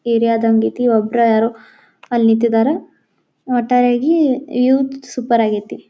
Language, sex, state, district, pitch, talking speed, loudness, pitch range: Kannada, female, Karnataka, Belgaum, 235 Hz, 100 wpm, -15 LUFS, 225-250 Hz